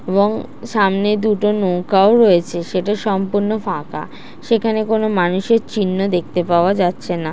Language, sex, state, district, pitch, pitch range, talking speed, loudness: Bengali, female, West Bengal, Jhargram, 195 Hz, 180-215 Hz, 130 wpm, -17 LUFS